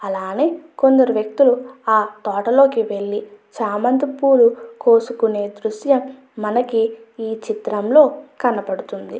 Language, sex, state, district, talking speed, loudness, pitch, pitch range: Telugu, female, Andhra Pradesh, Guntur, 100 wpm, -18 LUFS, 240 Hz, 215-275 Hz